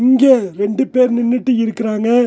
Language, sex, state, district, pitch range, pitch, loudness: Tamil, male, Tamil Nadu, Nilgiris, 225-255 Hz, 240 Hz, -15 LUFS